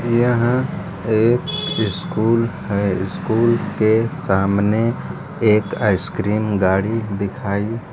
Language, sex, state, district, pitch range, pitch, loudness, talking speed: Hindi, male, Bihar, Saran, 100-115 Hz, 110 Hz, -19 LUFS, 90 wpm